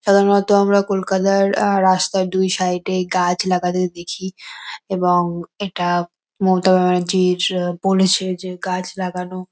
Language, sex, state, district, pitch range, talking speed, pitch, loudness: Bengali, female, West Bengal, Kolkata, 180-190 Hz, 130 wpm, 185 Hz, -18 LUFS